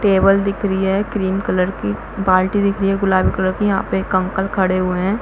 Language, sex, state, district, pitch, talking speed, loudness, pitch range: Hindi, female, Chhattisgarh, Bastar, 190 Hz, 240 wpm, -17 LUFS, 185-195 Hz